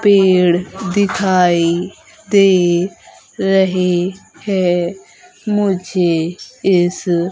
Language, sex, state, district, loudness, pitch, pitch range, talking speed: Hindi, female, Madhya Pradesh, Umaria, -15 LUFS, 185 Hz, 175-195 Hz, 55 wpm